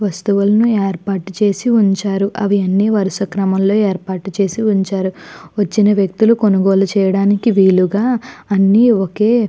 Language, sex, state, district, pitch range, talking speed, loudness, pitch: Telugu, female, Andhra Pradesh, Chittoor, 195-210 Hz, 115 wpm, -14 LUFS, 200 Hz